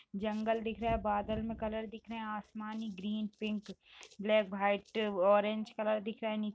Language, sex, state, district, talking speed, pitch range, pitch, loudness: Hindi, female, Uttar Pradesh, Jalaun, 200 wpm, 210-220 Hz, 215 Hz, -35 LUFS